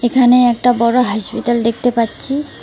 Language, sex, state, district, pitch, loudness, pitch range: Bengali, female, West Bengal, Alipurduar, 245 Hz, -14 LUFS, 230-250 Hz